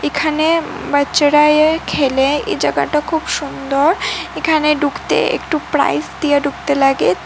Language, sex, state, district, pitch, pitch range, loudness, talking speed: Bengali, female, Assam, Hailakandi, 300 Hz, 285-315 Hz, -15 LUFS, 140 wpm